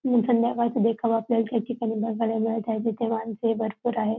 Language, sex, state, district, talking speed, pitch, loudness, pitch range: Marathi, female, Maharashtra, Dhule, 200 wpm, 225 Hz, -25 LUFS, 225-235 Hz